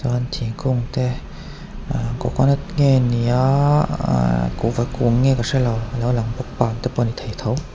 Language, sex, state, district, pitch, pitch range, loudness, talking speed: Mizo, male, Mizoram, Aizawl, 125 Hz, 120-130 Hz, -20 LUFS, 170 wpm